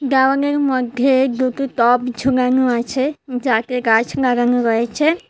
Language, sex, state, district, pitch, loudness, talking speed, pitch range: Bengali, female, Tripura, West Tripura, 255 Hz, -17 LUFS, 115 wpm, 245-270 Hz